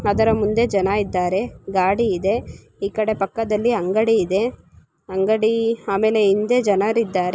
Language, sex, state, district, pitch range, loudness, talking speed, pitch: Kannada, female, Karnataka, Gulbarga, 195-225 Hz, -20 LUFS, 120 wpm, 210 Hz